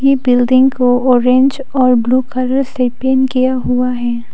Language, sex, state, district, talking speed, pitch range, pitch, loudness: Hindi, female, Arunachal Pradesh, Papum Pare, 165 wpm, 250-260 Hz, 255 Hz, -13 LUFS